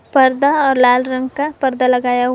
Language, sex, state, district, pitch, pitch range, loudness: Hindi, female, Jharkhand, Garhwa, 260 Hz, 250-275 Hz, -15 LUFS